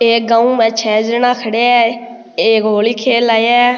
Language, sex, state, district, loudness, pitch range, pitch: Rajasthani, male, Rajasthan, Nagaur, -12 LUFS, 225-240 Hz, 230 Hz